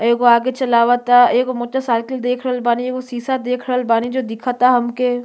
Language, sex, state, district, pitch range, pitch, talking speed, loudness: Bhojpuri, female, Uttar Pradesh, Gorakhpur, 240-255 Hz, 245 Hz, 195 wpm, -17 LUFS